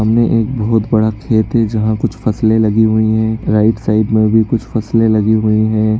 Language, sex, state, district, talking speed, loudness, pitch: Hindi, male, Bihar, East Champaran, 210 wpm, -13 LUFS, 110 Hz